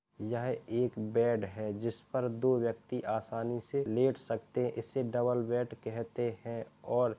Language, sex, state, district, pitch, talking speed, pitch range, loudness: Hindi, male, Uttar Pradesh, Jalaun, 115 Hz, 165 wpm, 115-125 Hz, -34 LUFS